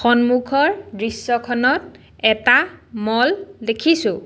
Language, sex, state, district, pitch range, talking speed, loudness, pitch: Assamese, female, Assam, Sonitpur, 225-305 Hz, 70 wpm, -18 LUFS, 245 Hz